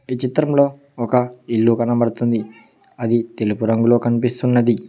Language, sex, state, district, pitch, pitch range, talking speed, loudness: Telugu, male, Telangana, Mahabubabad, 120 Hz, 115-125 Hz, 110 wpm, -18 LUFS